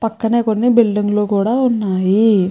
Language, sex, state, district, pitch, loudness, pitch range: Telugu, female, Andhra Pradesh, Chittoor, 220 Hz, -15 LUFS, 205-230 Hz